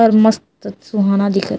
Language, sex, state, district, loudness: Chhattisgarhi, female, Chhattisgarh, Raigarh, -15 LUFS